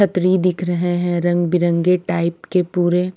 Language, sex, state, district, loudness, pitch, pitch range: Hindi, female, Maharashtra, Mumbai Suburban, -18 LUFS, 175 Hz, 175-180 Hz